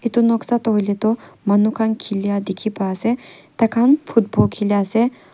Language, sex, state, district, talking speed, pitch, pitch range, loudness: Nagamese, female, Nagaland, Kohima, 170 wpm, 220 Hz, 205-230 Hz, -19 LUFS